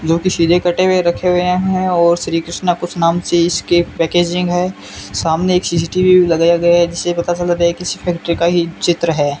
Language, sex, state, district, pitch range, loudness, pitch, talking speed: Hindi, male, Rajasthan, Bikaner, 170-180 Hz, -15 LUFS, 175 Hz, 225 wpm